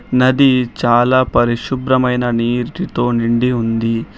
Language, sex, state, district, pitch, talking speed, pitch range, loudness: Telugu, male, Telangana, Hyderabad, 125 Hz, 85 wpm, 120-130 Hz, -15 LUFS